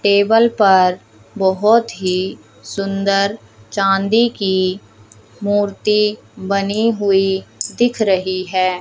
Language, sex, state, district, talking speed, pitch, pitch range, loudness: Hindi, male, Haryana, Charkhi Dadri, 90 wpm, 195 Hz, 185-210 Hz, -16 LUFS